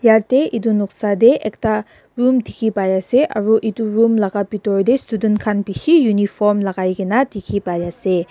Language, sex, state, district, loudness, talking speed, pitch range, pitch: Nagamese, female, Nagaland, Dimapur, -17 LUFS, 135 wpm, 200-230 Hz, 215 Hz